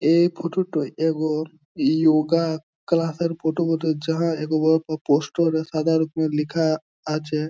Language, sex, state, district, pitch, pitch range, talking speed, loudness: Bengali, male, West Bengal, Jhargram, 160 Hz, 155-165 Hz, 110 wpm, -22 LUFS